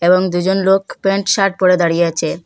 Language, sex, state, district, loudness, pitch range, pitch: Bengali, female, Assam, Hailakandi, -15 LUFS, 175-195 Hz, 185 Hz